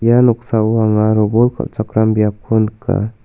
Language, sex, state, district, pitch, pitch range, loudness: Garo, male, Meghalaya, South Garo Hills, 110 Hz, 110-120 Hz, -15 LUFS